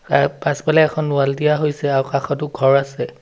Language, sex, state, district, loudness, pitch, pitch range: Assamese, male, Assam, Sonitpur, -18 LUFS, 145 Hz, 135-150 Hz